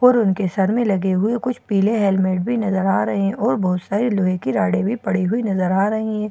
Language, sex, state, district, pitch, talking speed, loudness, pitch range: Hindi, female, Bihar, Katihar, 200 Hz, 255 wpm, -19 LUFS, 190-225 Hz